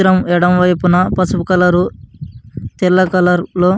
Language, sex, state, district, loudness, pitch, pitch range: Telugu, male, Andhra Pradesh, Anantapur, -13 LUFS, 180 Hz, 175-185 Hz